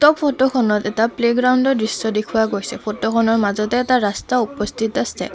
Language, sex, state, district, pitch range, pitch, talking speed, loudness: Assamese, female, Assam, Kamrup Metropolitan, 215-255 Hz, 225 Hz, 170 wpm, -18 LUFS